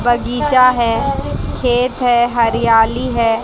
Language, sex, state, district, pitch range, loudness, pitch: Hindi, female, Haryana, Jhajjar, 230-250 Hz, -14 LUFS, 240 Hz